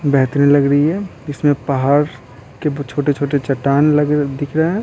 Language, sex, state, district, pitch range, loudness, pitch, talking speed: Hindi, male, Bihar, Patna, 140-150 Hz, -16 LUFS, 145 Hz, 160 wpm